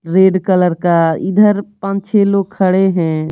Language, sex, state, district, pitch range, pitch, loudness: Hindi, female, Bihar, Patna, 175-200 Hz, 190 Hz, -13 LUFS